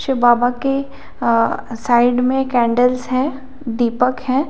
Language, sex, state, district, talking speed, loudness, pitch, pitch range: Hindi, female, Jharkhand, Jamtara, 120 wpm, -17 LUFS, 250 Hz, 240-265 Hz